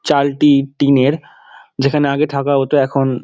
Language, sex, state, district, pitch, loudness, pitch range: Bengali, male, West Bengal, Dakshin Dinajpur, 140 Hz, -15 LUFS, 135-145 Hz